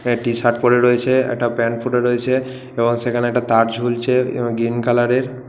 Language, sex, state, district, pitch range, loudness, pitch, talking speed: Bengali, male, West Bengal, Purulia, 120-125 Hz, -17 LUFS, 120 Hz, 185 wpm